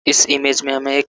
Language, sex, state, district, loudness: Hindi, male, Jharkhand, Sahebganj, -15 LUFS